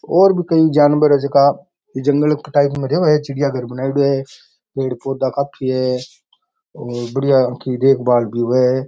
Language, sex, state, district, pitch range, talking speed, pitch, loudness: Rajasthani, male, Rajasthan, Nagaur, 130-150 Hz, 170 wpm, 135 Hz, -16 LUFS